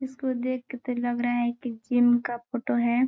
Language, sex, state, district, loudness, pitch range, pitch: Hindi, female, Chhattisgarh, Balrampur, -27 LUFS, 240-255 Hz, 245 Hz